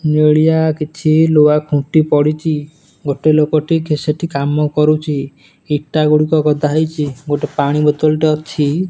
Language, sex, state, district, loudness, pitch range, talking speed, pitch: Odia, male, Odisha, Nuapada, -14 LUFS, 150-155 Hz, 130 wpm, 150 Hz